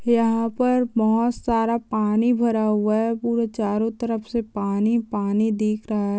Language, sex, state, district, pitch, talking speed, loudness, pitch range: Hindi, female, Bihar, Kishanganj, 225 Hz, 155 wpm, -22 LUFS, 215-235 Hz